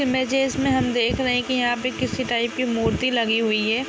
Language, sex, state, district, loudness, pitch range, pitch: Hindi, female, Bihar, Jamui, -22 LUFS, 235-260 Hz, 250 Hz